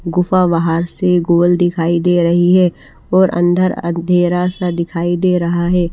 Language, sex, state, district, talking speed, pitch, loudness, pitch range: Hindi, female, Odisha, Malkangiri, 160 wpm, 175 Hz, -14 LUFS, 170-180 Hz